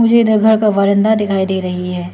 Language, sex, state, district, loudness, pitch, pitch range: Hindi, female, Arunachal Pradesh, Lower Dibang Valley, -13 LUFS, 200 Hz, 190-220 Hz